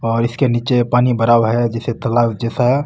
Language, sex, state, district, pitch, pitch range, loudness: Marwari, male, Rajasthan, Nagaur, 120 Hz, 115-125 Hz, -16 LUFS